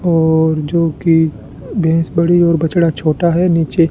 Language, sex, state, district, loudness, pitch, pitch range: Hindi, male, Rajasthan, Bikaner, -14 LUFS, 165 Hz, 160-170 Hz